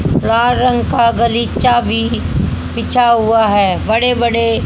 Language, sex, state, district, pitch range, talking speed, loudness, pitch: Hindi, female, Haryana, Jhajjar, 225-240 Hz, 130 wpm, -13 LUFS, 235 Hz